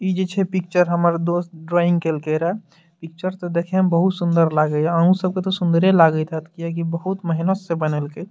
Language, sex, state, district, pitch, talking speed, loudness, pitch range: Maithili, male, Bihar, Madhepura, 170 Hz, 215 wpm, -20 LUFS, 165-185 Hz